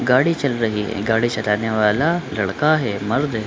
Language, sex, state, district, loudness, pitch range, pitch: Hindi, male, Bihar, Supaul, -19 LUFS, 105-145 Hz, 115 Hz